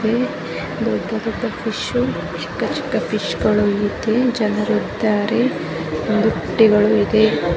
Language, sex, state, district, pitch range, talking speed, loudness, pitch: Kannada, female, Karnataka, Dakshina Kannada, 205-220 Hz, 95 wpm, -19 LUFS, 215 Hz